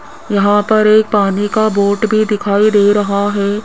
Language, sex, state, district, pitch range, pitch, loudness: Hindi, female, Rajasthan, Jaipur, 200-215 Hz, 205 Hz, -13 LUFS